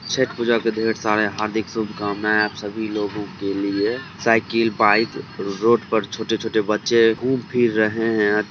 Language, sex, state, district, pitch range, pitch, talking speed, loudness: Hindi, male, Bihar, Samastipur, 105-115 Hz, 110 Hz, 150 wpm, -20 LUFS